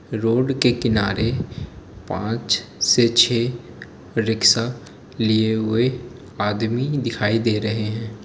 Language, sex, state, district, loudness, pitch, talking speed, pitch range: Hindi, male, Jharkhand, Jamtara, -20 LUFS, 115 Hz, 100 wpm, 110-120 Hz